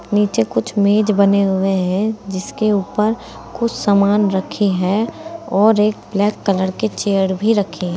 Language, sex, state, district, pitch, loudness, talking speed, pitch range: Hindi, female, Uttar Pradesh, Saharanpur, 200 Hz, -17 LUFS, 150 wpm, 190-215 Hz